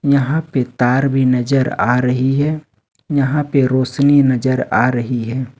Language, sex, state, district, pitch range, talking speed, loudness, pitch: Hindi, male, Jharkhand, Ranchi, 125-140 Hz, 160 wpm, -16 LUFS, 130 Hz